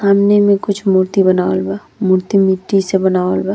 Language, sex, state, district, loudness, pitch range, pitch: Bhojpuri, female, Uttar Pradesh, Deoria, -14 LUFS, 185-200 Hz, 190 Hz